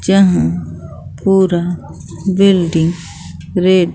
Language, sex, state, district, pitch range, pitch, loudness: Hindi, female, Bihar, Katihar, 160-190 Hz, 175 Hz, -14 LUFS